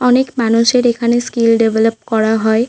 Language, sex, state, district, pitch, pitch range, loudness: Bengali, female, West Bengal, Paschim Medinipur, 230 Hz, 225-240 Hz, -13 LUFS